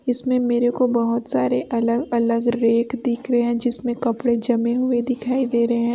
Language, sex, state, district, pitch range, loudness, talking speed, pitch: Hindi, female, Chhattisgarh, Raipur, 235-245 Hz, -20 LUFS, 190 wpm, 240 Hz